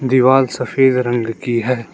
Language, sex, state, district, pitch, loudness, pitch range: Hindi, male, Arunachal Pradesh, Lower Dibang Valley, 125 Hz, -16 LUFS, 120-130 Hz